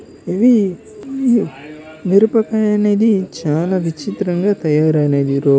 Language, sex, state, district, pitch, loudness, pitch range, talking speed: Telugu, male, Andhra Pradesh, Srikakulam, 185 Hz, -15 LUFS, 155-210 Hz, 65 wpm